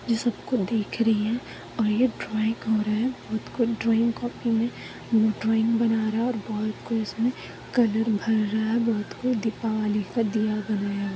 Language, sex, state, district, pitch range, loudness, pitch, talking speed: Hindi, female, Chhattisgarh, Balrampur, 215-230 Hz, -25 LUFS, 225 Hz, 190 wpm